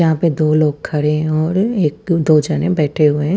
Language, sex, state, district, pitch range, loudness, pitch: Hindi, female, Punjab, Fazilka, 150-170 Hz, -16 LUFS, 155 Hz